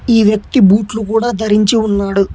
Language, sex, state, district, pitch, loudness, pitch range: Telugu, male, Telangana, Hyderabad, 215 Hz, -12 LUFS, 205-225 Hz